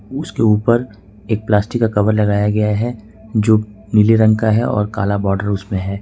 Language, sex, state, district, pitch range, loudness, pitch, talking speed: Hindi, male, Jharkhand, Ranchi, 105-110 Hz, -16 LUFS, 105 Hz, 190 wpm